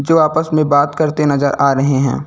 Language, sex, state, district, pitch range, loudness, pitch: Hindi, male, Uttar Pradesh, Lucknow, 140-155 Hz, -14 LUFS, 145 Hz